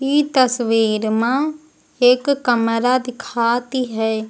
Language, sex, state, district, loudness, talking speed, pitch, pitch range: Hindi, female, Uttar Pradesh, Lucknow, -18 LUFS, 100 wpm, 245 Hz, 230-265 Hz